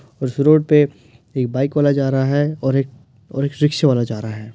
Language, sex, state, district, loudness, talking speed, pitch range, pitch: Hindi, male, Uttar Pradesh, Jyotiba Phule Nagar, -18 LUFS, 235 wpm, 125-145 Hz, 135 Hz